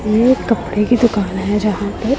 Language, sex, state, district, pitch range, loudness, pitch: Hindi, female, Punjab, Pathankot, 205-240 Hz, -16 LUFS, 215 Hz